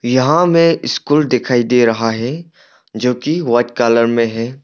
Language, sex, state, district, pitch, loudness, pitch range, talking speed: Hindi, male, Arunachal Pradesh, Longding, 125 Hz, -14 LUFS, 115-150 Hz, 170 wpm